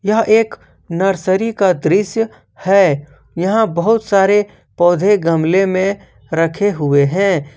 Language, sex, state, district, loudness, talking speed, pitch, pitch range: Hindi, male, Jharkhand, Ranchi, -15 LUFS, 120 wpm, 195 Hz, 165-205 Hz